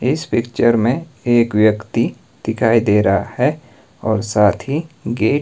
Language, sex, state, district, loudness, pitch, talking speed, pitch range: Hindi, male, Himachal Pradesh, Shimla, -17 LUFS, 115 Hz, 155 wpm, 105-130 Hz